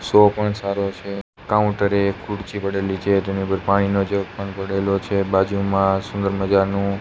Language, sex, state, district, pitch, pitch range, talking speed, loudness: Gujarati, male, Gujarat, Gandhinagar, 100 Hz, 95-100 Hz, 155 wpm, -20 LUFS